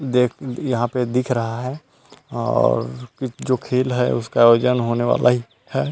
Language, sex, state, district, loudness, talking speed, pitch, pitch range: Hindi, male, Chhattisgarh, Rajnandgaon, -20 LUFS, 160 wpm, 125 Hz, 120-130 Hz